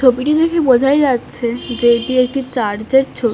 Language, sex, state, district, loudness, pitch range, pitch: Bengali, female, West Bengal, North 24 Parganas, -15 LUFS, 240-270 Hz, 255 Hz